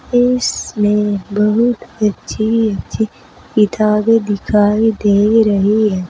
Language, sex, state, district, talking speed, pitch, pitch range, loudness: Hindi, female, Uttar Pradesh, Saharanpur, 90 wpm, 215 Hz, 205-225 Hz, -14 LUFS